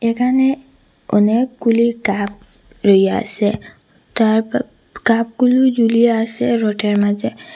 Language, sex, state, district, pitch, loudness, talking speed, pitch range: Bengali, female, Assam, Hailakandi, 230 Hz, -16 LUFS, 80 wpm, 205-240 Hz